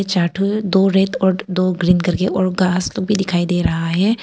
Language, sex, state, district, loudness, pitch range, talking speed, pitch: Hindi, female, Arunachal Pradesh, Papum Pare, -17 LUFS, 180-195 Hz, 215 wpm, 185 Hz